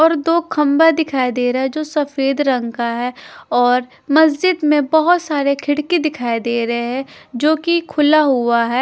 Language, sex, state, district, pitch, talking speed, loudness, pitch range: Hindi, female, Chhattisgarh, Raipur, 285 Hz, 185 wpm, -16 LUFS, 250-315 Hz